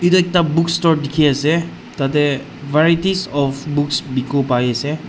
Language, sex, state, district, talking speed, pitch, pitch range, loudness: Nagamese, male, Nagaland, Dimapur, 140 wpm, 150 Hz, 140-165 Hz, -17 LUFS